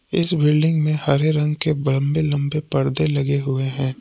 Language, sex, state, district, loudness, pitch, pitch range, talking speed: Hindi, male, Jharkhand, Palamu, -19 LUFS, 150 Hz, 140-155 Hz, 180 wpm